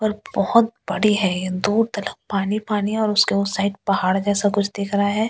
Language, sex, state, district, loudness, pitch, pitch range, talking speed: Hindi, female, Delhi, New Delhi, -20 LUFS, 205 Hz, 200-215 Hz, 240 wpm